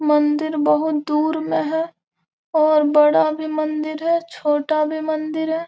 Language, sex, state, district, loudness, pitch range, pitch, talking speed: Hindi, female, Bihar, Gopalganj, -19 LUFS, 300-315 Hz, 310 Hz, 150 wpm